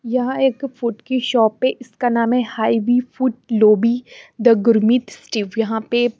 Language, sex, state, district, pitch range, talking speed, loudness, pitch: Hindi, female, Haryana, Charkhi Dadri, 225-250 Hz, 175 wpm, -18 LUFS, 235 Hz